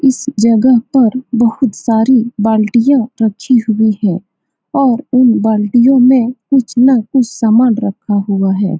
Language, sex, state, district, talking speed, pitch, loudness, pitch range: Hindi, female, Bihar, Saran, 135 wpm, 235 Hz, -12 LUFS, 220-255 Hz